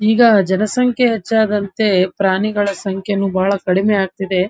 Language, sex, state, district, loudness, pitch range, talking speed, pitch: Kannada, female, Karnataka, Dharwad, -16 LUFS, 190-215 Hz, 120 wpm, 200 Hz